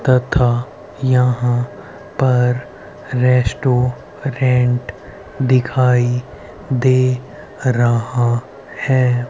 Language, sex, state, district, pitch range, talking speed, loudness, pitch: Hindi, male, Haryana, Rohtak, 120-130 Hz, 50 wpm, -17 LUFS, 125 Hz